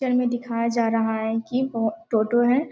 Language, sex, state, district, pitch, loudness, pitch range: Hindi, female, Bihar, Jamui, 235 Hz, -23 LUFS, 225-250 Hz